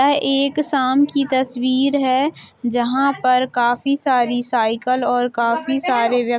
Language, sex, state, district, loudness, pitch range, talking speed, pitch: Hindi, female, Jharkhand, Jamtara, -18 LUFS, 245-275 Hz, 150 wpm, 255 Hz